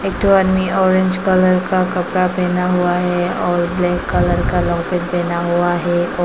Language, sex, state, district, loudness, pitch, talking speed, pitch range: Hindi, female, Arunachal Pradesh, Papum Pare, -16 LUFS, 180 Hz, 165 wpm, 175-185 Hz